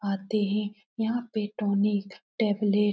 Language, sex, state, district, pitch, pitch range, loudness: Hindi, female, Bihar, Lakhisarai, 210 Hz, 205-215 Hz, -28 LUFS